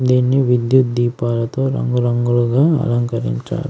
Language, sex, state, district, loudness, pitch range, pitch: Telugu, male, Andhra Pradesh, Srikakulam, -17 LUFS, 120-130 Hz, 120 Hz